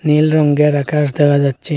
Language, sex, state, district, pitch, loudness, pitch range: Bengali, male, Assam, Hailakandi, 150 Hz, -14 LUFS, 145-150 Hz